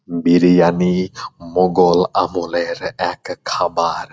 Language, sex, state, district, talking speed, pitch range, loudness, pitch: Bengali, male, West Bengal, Purulia, 75 wpm, 85-90 Hz, -17 LUFS, 90 Hz